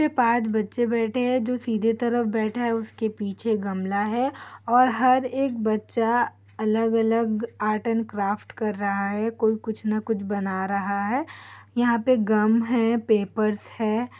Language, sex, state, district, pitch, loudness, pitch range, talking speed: Hindi, female, Chhattisgarh, Korba, 225 Hz, -24 LUFS, 215-240 Hz, 165 wpm